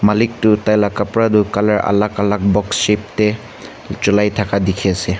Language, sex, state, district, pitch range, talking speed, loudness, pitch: Nagamese, male, Nagaland, Kohima, 100-105 Hz, 185 wpm, -16 LUFS, 105 Hz